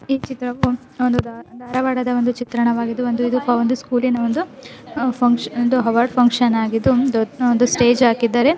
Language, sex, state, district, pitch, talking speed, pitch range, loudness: Kannada, female, Karnataka, Dharwad, 245 Hz, 135 wpm, 240-255 Hz, -18 LUFS